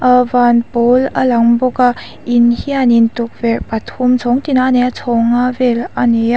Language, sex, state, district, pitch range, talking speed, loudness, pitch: Mizo, female, Mizoram, Aizawl, 235-250 Hz, 195 wpm, -13 LUFS, 245 Hz